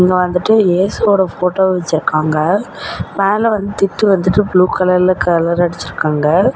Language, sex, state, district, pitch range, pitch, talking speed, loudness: Tamil, female, Tamil Nadu, Namakkal, 175-200 Hz, 185 Hz, 120 wpm, -14 LUFS